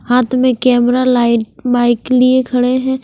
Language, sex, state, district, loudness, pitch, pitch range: Hindi, female, Punjab, Fazilka, -13 LUFS, 250 Hz, 245-255 Hz